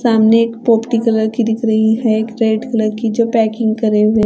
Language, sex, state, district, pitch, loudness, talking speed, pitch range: Hindi, female, Punjab, Fazilka, 225 Hz, -14 LUFS, 225 wpm, 220-230 Hz